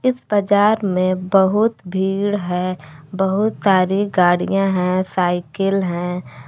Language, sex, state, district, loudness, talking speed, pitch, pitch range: Hindi, female, Jharkhand, Palamu, -18 LUFS, 100 wpm, 190 Hz, 180-200 Hz